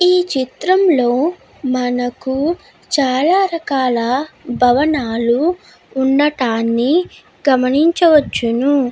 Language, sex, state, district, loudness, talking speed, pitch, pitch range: Telugu, female, Andhra Pradesh, Guntur, -16 LUFS, 60 wpm, 275 Hz, 250-330 Hz